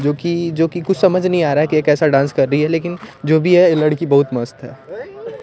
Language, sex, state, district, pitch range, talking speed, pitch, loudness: Hindi, male, Chandigarh, Chandigarh, 150-180 Hz, 265 wpm, 165 Hz, -15 LUFS